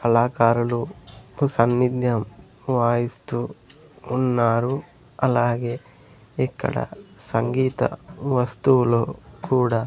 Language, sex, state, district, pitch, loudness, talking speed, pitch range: Telugu, male, Andhra Pradesh, Sri Satya Sai, 125 Hz, -22 LUFS, 60 wpm, 120-130 Hz